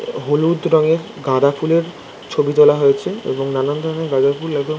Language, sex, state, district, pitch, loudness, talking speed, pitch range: Bengali, male, West Bengal, Kolkata, 150 Hz, -17 LUFS, 175 wpm, 140-160 Hz